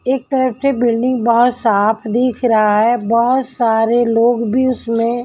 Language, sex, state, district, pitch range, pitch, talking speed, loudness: Hindi, female, Delhi, New Delhi, 230-250 Hz, 235 Hz, 160 wpm, -15 LUFS